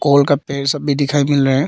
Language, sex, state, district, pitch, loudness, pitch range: Hindi, male, Arunachal Pradesh, Papum Pare, 140 Hz, -16 LUFS, 140-145 Hz